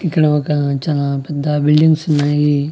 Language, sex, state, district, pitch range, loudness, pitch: Telugu, male, Andhra Pradesh, Annamaya, 145-150 Hz, -15 LUFS, 150 Hz